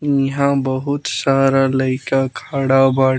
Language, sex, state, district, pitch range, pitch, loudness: Bhojpuri, male, Bihar, Muzaffarpur, 135-140 Hz, 135 Hz, -17 LUFS